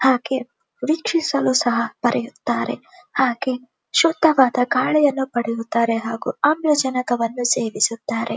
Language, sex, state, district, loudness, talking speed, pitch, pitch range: Kannada, female, Karnataka, Dharwad, -20 LUFS, 85 wpm, 260 Hz, 240-295 Hz